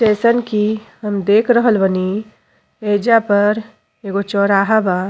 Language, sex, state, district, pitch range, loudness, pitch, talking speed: Bhojpuri, female, Uttar Pradesh, Ghazipur, 200-220 Hz, -16 LUFS, 210 Hz, 130 wpm